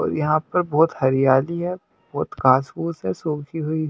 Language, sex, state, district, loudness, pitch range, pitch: Hindi, male, Bihar, Katihar, -21 LUFS, 135-165 Hz, 155 Hz